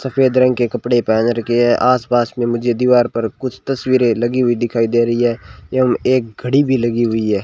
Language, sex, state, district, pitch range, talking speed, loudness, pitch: Hindi, male, Rajasthan, Bikaner, 115-125 Hz, 225 wpm, -16 LUFS, 120 Hz